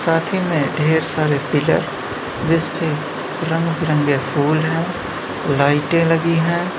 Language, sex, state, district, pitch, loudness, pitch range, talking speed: Hindi, male, Uttar Pradesh, Budaun, 160 Hz, -18 LUFS, 150-165 Hz, 125 wpm